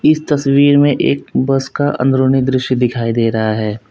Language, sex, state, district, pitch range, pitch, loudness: Hindi, male, Uttar Pradesh, Lalitpur, 115-140 Hz, 130 Hz, -14 LUFS